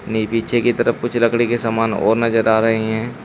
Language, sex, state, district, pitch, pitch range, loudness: Hindi, male, Uttar Pradesh, Saharanpur, 115 Hz, 110-120 Hz, -17 LUFS